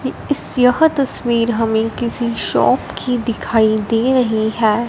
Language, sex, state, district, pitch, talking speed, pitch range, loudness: Hindi, female, Punjab, Fazilka, 235 Hz, 135 wpm, 225-250 Hz, -16 LUFS